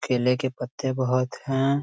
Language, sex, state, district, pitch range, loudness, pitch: Hindi, male, Bihar, Muzaffarpur, 125-135 Hz, -25 LUFS, 130 Hz